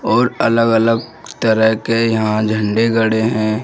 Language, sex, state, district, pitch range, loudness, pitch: Hindi, male, Bihar, Jamui, 110-115 Hz, -15 LUFS, 110 Hz